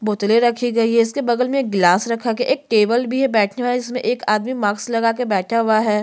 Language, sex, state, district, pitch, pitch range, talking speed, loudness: Hindi, female, Chhattisgarh, Sukma, 230 Hz, 215-245 Hz, 280 wpm, -18 LUFS